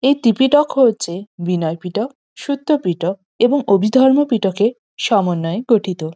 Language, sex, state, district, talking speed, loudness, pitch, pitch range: Bengali, female, West Bengal, North 24 Parganas, 115 wpm, -17 LUFS, 220 Hz, 180-260 Hz